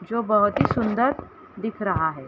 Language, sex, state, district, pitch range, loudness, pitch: Hindi, female, Jharkhand, Jamtara, 190-230 Hz, -23 LUFS, 215 Hz